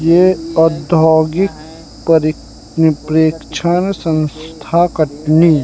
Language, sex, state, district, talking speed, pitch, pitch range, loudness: Hindi, male, Madhya Pradesh, Katni, 65 wpm, 160 Hz, 155-170 Hz, -14 LUFS